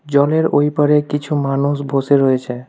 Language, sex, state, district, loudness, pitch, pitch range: Bengali, male, West Bengal, Alipurduar, -16 LUFS, 140 Hz, 135-145 Hz